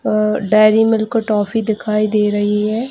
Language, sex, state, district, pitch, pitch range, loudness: Hindi, female, Bihar, Jahanabad, 215 Hz, 210-225 Hz, -15 LUFS